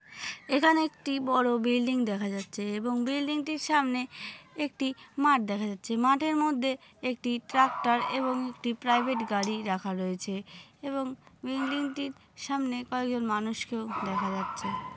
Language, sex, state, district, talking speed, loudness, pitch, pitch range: Bengali, female, West Bengal, Malda, 125 wpm, -29 LUFS, 255 Hz, 225-275 Hz